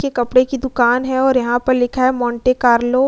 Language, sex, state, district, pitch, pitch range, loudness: Hindi, female, Bihar, Vaishali, 255 Hz, 240-260 Hz, -16 LUFS